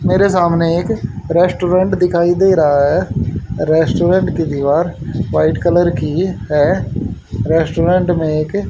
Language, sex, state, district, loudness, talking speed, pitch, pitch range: Hindi, male, Haryana, Rohtak, -15 LUFS, 130 wpm, 170 Hz, 150-180 Hz